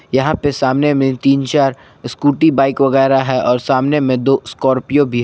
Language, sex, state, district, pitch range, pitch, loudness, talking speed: Hindi, male, Jharkhand, Garhwa, 130-140 Hz, 135 Hz, -14 LUFS, 195 wpm